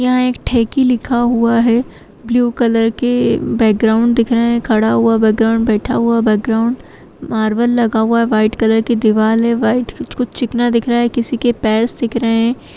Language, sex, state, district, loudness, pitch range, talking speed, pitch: Kumaoni, female, Uttarakhand, Tehri Garhwal, -14 LUFS, 225-240 Hz, 205 wpm, 235 Hz